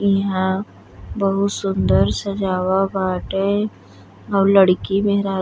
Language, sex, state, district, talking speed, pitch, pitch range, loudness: Bhojpuri, female, Uttar Pradesh, Deoria, 90 wpm, 195 Hz, 185-200 Hz, -19 LUFS